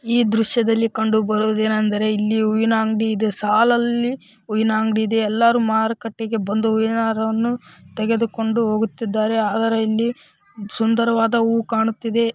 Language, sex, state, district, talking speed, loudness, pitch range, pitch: Kannada, female, Karnataka, Raichur, 115 wpm, -19 LUFS, 220-230 Hz, 225 Hz